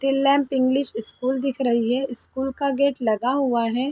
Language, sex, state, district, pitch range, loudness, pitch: Hindi, female, Chhattisgarh, Korba, 240-275 Hz, -22 LUFS, 265 Hz